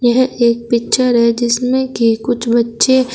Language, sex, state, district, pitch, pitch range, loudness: Hindi, female, Uttar Pradesh, Shamli, 240 Hz, 235-255 Hz, -14 LUFS